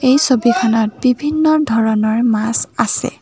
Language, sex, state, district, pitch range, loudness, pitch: Assamese, female, Assam, Kamrup Metropolitan, 225-270 Hz, -15 LUFS, 240 Hz